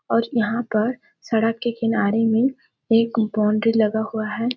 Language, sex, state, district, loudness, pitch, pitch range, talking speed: Hindi, female, Chhattisgarh, Sarguja, -21 LUFS, 225 Hz, 220-235 Hz, 170 wpm